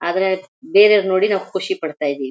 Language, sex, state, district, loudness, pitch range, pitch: Kannada, female, Karnataka, Mysore, -17 LUFS, 170-200 Hz, 190 Hz